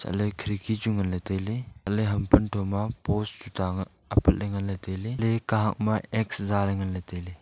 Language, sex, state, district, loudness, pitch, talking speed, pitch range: Wancho, male, Arunachal Pradesh, Longding, -28 LUFS, 105 Hz, 195 wpm, 95-110 Hz